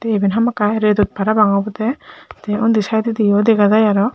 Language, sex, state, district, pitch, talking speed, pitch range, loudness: Chakma, male, Tripura, Unakoti, 215 Hz, 190 wpm, 205-225 Hz, -15 LUFS